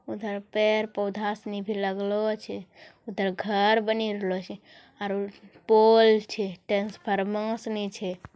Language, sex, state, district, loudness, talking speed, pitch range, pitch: Angika, female, Bihar, Bhagalpur, -26 LUFS, 120 wpm, 200-215 Hz, 205 Hz